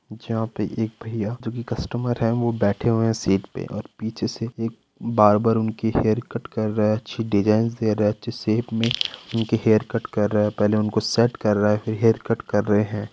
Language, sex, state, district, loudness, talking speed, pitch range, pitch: Hindi, male, Rajasthan, Nagaur, -22 LUFS, 235 wpm, 105-115 Hz, 110 Hz